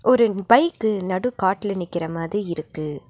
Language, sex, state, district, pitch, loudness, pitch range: Tamil, female, Tamil Nadu, Nilgiris, 185 Hz, -22 LUFS, 165-210 Hz